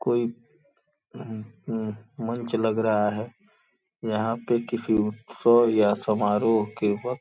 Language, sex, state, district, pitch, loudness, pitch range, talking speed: Hindi, male, Uttar Pradesh, Gorakhpur, 110 Hz, -25 LUFS, 105-115 Hz, 150 wpm